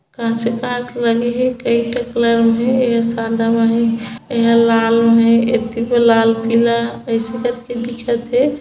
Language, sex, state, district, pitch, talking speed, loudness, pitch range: Hindi, female, Chhattisgarh, Bilaspur, 235 Hz, 175 wpm, -16 LUFS, 230-240 Hz